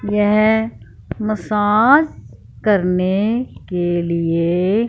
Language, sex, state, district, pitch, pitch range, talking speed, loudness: Hindi, female, Punjab, Fazilka, 210 Hz, 180-215 Hz, 60 wpm, -17 LUFS